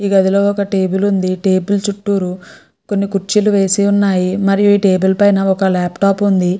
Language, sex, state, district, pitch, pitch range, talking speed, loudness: Telugu, female, Andhra Pradesh, Guntur, 195 Hz, 190-200 Hz, 165 wpm, -14 LUFS